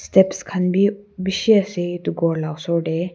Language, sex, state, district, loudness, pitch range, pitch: Nagamese, female, Nagaland, Kohima, -20 LUFS, 170-190 Hz, 180 Hz